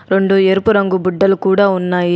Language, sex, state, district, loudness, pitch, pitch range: Telugu, female, Telangana, Adilabad, -13 LUFS, 195 Hz, 185-195 Hz